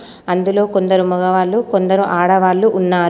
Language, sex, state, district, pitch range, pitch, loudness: Telugu, female, Telangana, Komaram Bheem, 185-200 Hz, 190 Hz, -14 LUFS